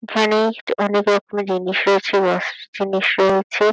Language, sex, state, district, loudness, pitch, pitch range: Bengali, female, West Bengal, Kolkata, -18 LUFS, 205 Hz, 195-210 Hz